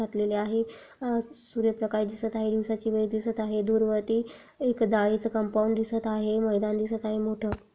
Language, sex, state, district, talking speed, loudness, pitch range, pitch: Marathi, female, Maharashtra, Sindhudurg, 160 wpm, -28 LUFS, 215-225 Hz, 220 Hz